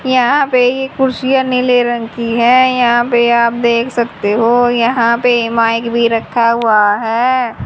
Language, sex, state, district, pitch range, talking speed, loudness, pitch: Hindi, female, Haryana, Jhajjar, 230-250 Hz, 165 wpm, -12 LUFS, 235 Hz